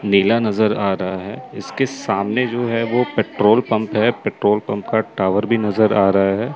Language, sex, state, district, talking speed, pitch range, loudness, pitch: Hindi, male, Chandigarh, Chandigarh, 200 wpm, 100-115 Hz, -18 LUFS, 105 Hz